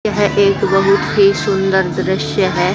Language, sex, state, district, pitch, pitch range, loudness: Hindi, female, Haryana, Charkhi Dadri, 195 Hz, 190-200 Hz, -14 LUFS